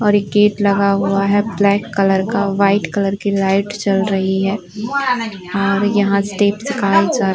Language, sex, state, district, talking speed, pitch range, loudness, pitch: Hindi, female, Uttar Pradesh, Varanasi, 180 wpm, 195-205 Hz, -16 LUFS, 200 Hz